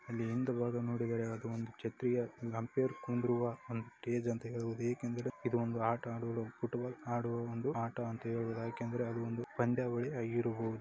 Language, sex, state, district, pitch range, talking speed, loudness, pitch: Kannada, male, Karnataka, Dakshina Kannada, 115-120 Hz, 95 wpm, -38 LUFS, 120 Hz